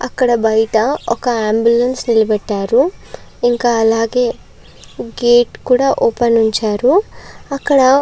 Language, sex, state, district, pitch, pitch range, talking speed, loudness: Telugu, female, Andhra Pradesh, Chittoor, 235 Hz, 225-250 Hz, 95 wpm, -14 LUFS